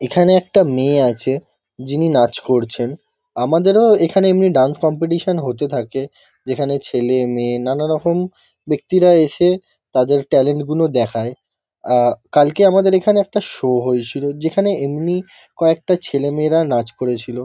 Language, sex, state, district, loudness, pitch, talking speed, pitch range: Bengali, male, West Bengal, Kolkata, -16 LUFS, 145 Hz, 125 wpm, 125-180 Hz